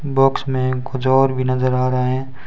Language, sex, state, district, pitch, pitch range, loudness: Hindi, male, Rajasthan, Bikaner, 130 Hz, 130-135 Hz, -18 LUFS